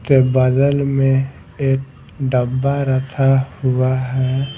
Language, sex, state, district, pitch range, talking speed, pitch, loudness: Hindi, male, Bihar, Patna, 130-135 Hz, 120 wpm, 135 Hz, -17 LUFS